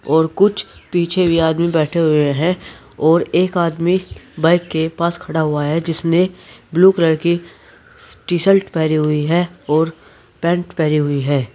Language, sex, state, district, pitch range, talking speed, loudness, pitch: Hindi, male, Uttar Pradesh, Saharanpur, 155-175 Hz, 160 wpm, -16 LUFS, 165 Hz